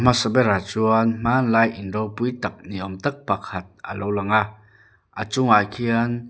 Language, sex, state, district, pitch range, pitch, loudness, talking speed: Mizo, male, Mizoram, Aizawl, 105-120 Hz, 110 Hz, -22 LUFS, 170 wpm